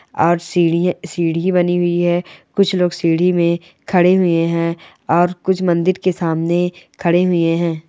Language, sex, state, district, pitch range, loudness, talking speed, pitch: Hindi, female, Rajasthan, Churu, 170-180 Hz, -16 LUFS, 150 wpm, 175 Hz